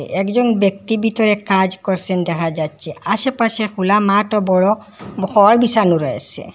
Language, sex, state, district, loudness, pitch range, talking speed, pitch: Bengali, female, Assam, Hailakandi, -16 LUFS, 185-215 Hz, 135 wpm, 200 Hz